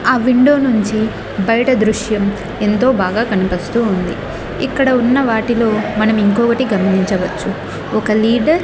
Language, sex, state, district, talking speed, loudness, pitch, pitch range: Telugu, female, Andhra Pradesh, Annamaya, 125 wpm, -15 LUFS, 220 Hz, 205-245 Hz